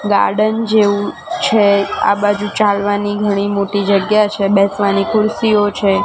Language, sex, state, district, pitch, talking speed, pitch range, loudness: Gujarati, female, Gujarat, Gandhinagar, 205 Hz, 130 wpm, 200-215 Hz, -14 LUFS